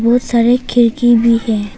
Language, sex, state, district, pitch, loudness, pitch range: Hindi, female, Arunachal Pradesh, Papum Pare, 235 Hz, -12 LUFS, 230-240 Hz